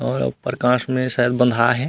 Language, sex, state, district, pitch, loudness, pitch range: Chhattisgarhi, male, Chhattisgarh, Rajnandgaon, 125 Hz, -19 LUFS, 120-130 Hz